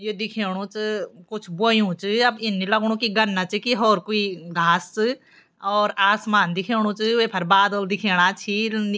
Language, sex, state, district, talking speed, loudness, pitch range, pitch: Garhwali, female, Uttarakhand, Tehri Garhwal, 180 wpm, -21 LUFS, 195-220 Hz, 210 Hz